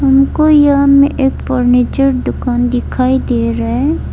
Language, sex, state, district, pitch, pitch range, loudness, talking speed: Hindi, female, Arunachal Pradesh, Lower Dibang Valley, 265 Hz, 245-280 Hz, -12 LUFS, 145 wpm